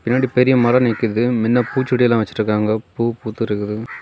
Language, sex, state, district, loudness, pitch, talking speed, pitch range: Tamil, male, Tamil Nadu, Kanyakumari, -18 LUFS, 115 Hz, 135 wpm, 110-125 Hz